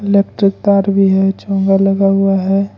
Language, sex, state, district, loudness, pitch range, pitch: Hindi, male, Jharkhand, Ranchi, -13 LUFS, 195-200 Hz, 195 Hz